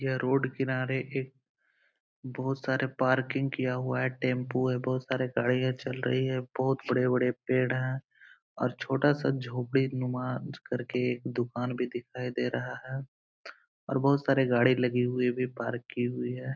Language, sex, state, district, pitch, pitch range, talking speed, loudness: Hindi, male, Bihar, Araria, 130 Hz, 125-130 Hz, 165 wpm, -30 LUFS